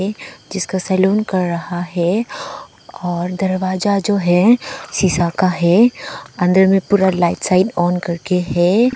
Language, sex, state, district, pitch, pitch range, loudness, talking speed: Hindi, female, Arunachal Pradesh, Papum Pare, 185 Hz, 175-200 Hz, -16 LUFS, 140 wpm